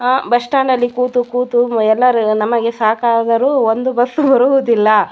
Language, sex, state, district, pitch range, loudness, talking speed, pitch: Kannada, female, Karnataka, Bellary, 230-250 Hz, -14 LUFS, 140 wpm, 245 Hz